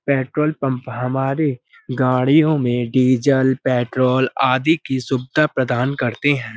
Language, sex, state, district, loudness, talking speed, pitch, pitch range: Hindi, male, Uttar Pradesh, Budaun, -18 LUFS, 120 wpm, 130 Hz, 125-140 Hz